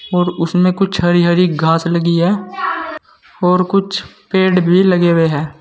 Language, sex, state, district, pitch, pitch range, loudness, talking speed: Hindi, male, Uttar Pradesh, Saharanpur, 180 Hz, 170-195 Hz, -14 LUFS, 160 wpm